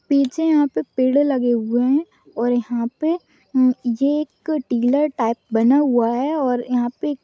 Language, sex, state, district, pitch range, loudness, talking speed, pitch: Hindi, female, Chhattisgarh, Raigarh, 240-290 Hz, -19 LUFS, 165 wpm, 255 Hz